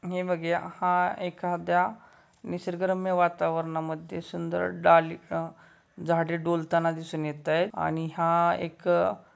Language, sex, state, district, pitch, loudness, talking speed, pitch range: Marathi, male, Maharashtra, Solapur, 170 Hz, -27 LUFS, 95 wpm, 160-180 Hz